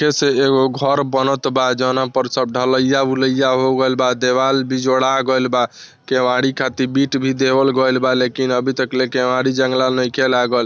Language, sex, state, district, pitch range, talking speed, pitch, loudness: Bhojpuri, male, Bihar, Saran, 130-135 Hz, 180 wpm, 130 Hz, -16 LUFS